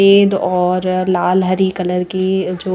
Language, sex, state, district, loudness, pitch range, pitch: Hindi, female, Odisha, Nuapada, -15 LUFS, 180-190 Hz, 185 Hz